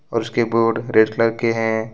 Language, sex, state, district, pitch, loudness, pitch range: Hindi, male, Jharkhand, Ranchi, 115 Hz, -19 LUFS, 110-115 Hz